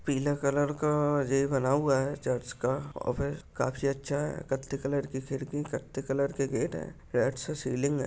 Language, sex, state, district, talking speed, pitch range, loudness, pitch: Hindi, male, Maharashtra, Pune, 185 wpm, 135-145 Hz, -31 LUFS, 140 Hz